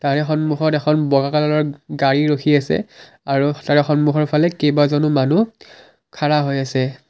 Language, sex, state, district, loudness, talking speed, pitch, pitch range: Assamese, male, Assam, Kamrup Metropolitan, -17 LUFS, 145 wpm, 150 Hz, 140-150 Hz